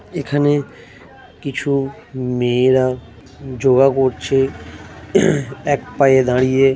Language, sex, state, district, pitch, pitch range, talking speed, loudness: Bengali, male, West Bengal, Jhargram, 135 Hz, 130-140 Hz, 70 wpm, -17 LUFS